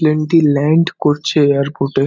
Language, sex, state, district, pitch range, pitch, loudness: Bengali, male, West Bengal, Dakshin Dinajpur, 140-160 Hz, 150 Hz, -14 LUFS